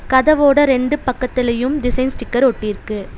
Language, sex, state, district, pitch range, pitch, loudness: Tamil, female, Tamil Nadu, Nilgiris, 240-270 Hz, 255 Hz, -16 LUFS